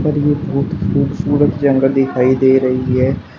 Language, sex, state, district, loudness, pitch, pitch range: Hindi, male, Uttar Pradesh, Shamli, -15 LUFS, 135 Hz, 130-145 Hz